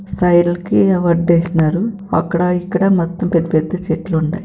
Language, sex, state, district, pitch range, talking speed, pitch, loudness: Telugu, female, Andhra Pradesh, Anantapur, 170-185 Hz, 120 wpm, 175 Hz, -16 LUFS